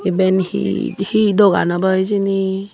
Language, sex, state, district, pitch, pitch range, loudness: Chakma, female, Tripura, Unakoti, 195 Hz, 190-200 Hz, -16 LUFS